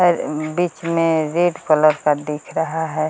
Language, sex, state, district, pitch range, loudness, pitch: Hindi, female, Bihar, Kaimur, 155-170 Hz, -19 LUFS, 160 Hz